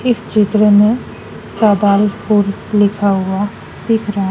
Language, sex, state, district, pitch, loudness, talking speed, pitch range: Hindi, female, Madhya Pradesh, Dhar, 205 Hz, -14 LUFS, 110 wpm, 200-215 Hz